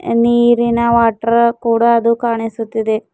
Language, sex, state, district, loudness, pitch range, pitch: Kannada, female, Karnataka, Bidar, -14 LUFS, 230-235 Hz, 235 Hz